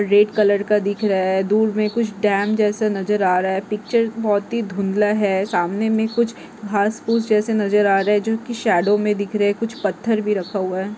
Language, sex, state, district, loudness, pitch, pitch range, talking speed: Hindi, female, Maharashtra, Dhule, -19 LUFS, 210 Hz, 200-220 Hz, 220 wpm